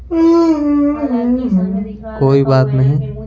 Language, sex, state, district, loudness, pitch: Hindi, male, Bihar, Patna, -14 LUFS, 220 Hz